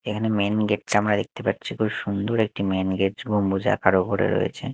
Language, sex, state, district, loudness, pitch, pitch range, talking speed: Bengali, male, Chhattisgarh, Raipur, -23 LUFS, 105 Hz, 95-110 Hz, 215 wpm